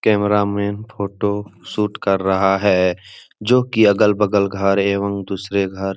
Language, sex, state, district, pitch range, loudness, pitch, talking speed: Hindi, male, Bihar, Supaul, 95-105 Hz, -18 LUFS, 100 Hz, 160 wpm